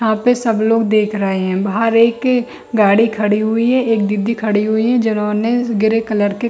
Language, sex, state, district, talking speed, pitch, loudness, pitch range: Hindi, female, Chhattisgarh, Bilaspur, 215 wpm, 220 Hz, -15 LUFS, 210-230 Hz